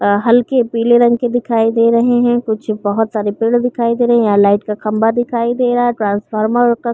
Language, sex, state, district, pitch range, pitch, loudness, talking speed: Hindi, female, Chhattisgarh, Bilaspur, 215-240 Hz, 235 Hz, -14 LUFS, 235 wpm